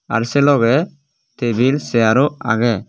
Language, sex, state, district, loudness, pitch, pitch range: Chakma, male, Tripura, West Tripura, -16 LUFS, 130 Hz, 115-145 Hz